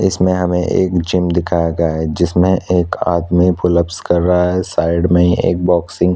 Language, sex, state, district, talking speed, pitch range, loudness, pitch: Hindi, male, Chhattisgarh, Korba, 195 wpm, 85-90 Hz, -15 LUFS, 90 Hz